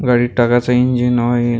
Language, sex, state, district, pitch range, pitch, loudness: Marathi, male, Maharashtra, Gondia, 120-125 Hz, 120 Hz, -14 LUFS